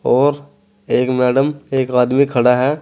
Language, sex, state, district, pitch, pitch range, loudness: Hindi, male, Uttar Pradesh, Saharanpur, 135 Hz, 125-145 Hz, -16 LUFS